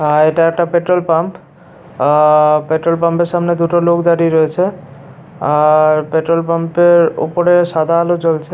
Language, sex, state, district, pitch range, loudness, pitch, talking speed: Bengali, male, West Bengal, Paschim Medinipur, 155-175 Hz, -13 LUFS, 165 Hz, 140 wpm